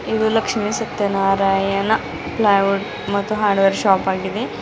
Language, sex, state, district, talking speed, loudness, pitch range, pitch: Kannada, female, Karnataka, Bidar, 105 wpm, -18 LUFS, 195-215 Hz, 200 Hz